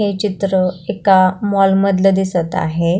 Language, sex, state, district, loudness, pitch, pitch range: Marathi, female, Maharashtra, Pune, -15 LUFS, 190 Hz, 185-195 Hz